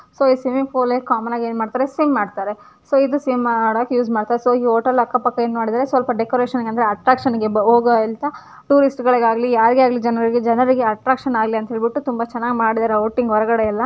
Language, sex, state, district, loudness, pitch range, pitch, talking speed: Kannada, female, Karnataka, Gulbarga, -18 LUFS, 225-255 Hz, 240 Hz, 180 wpm